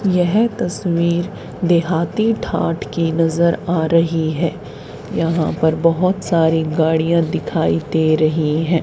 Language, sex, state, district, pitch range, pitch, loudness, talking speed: Hindi, female, Haryana, Charkhi Dadri, 160-175 Hz, 165 Hz, -17 LUFS, 120 wpm